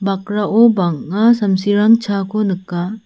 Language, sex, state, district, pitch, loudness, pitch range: Garo, female, Meghalaya, South Garo Hills, 205 Hz, -15 LUFS, 190-215 Hz